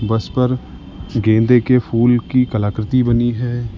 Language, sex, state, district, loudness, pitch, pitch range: Hindi, male, Uttar Pradesh, Lalitpur, -16 LUFS, 120 Hz, 110-125 Hz